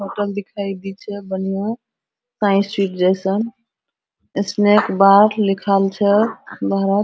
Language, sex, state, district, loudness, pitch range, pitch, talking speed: Hindi, female, Bihar, Araria, -18 LUFS, 195-210 Hz, 200 Hz, 95 wpm